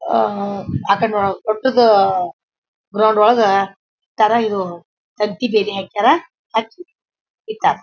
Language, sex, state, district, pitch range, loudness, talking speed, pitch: Kannada, female, Karnataka, Bijapur, 200-235 Hz, -17 LUFS, 90 wpm, 210 Hz